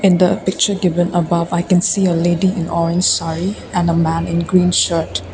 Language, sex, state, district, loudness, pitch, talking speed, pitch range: English, female, Assam, Kamrup Metropolitan, -16 LUFS, 175 Hz, 190 wpm, 170-180 Hz